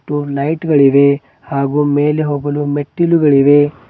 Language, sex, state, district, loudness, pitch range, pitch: Kannada, male, Karnataka, Bidar, -13 LUFS, 140-150 Hz, 145 Hz